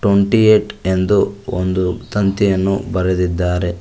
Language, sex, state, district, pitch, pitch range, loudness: Kannada, male, Karnataka, Koppal, 95 Hz, 90-105 Hz, -16 LUFS